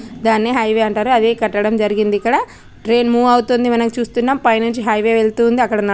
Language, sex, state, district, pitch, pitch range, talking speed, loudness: Telugu, female, Andhra Pradesh, Krishna, 230 Hz, 220-240 Hz, 170 wpm, -15 LUFS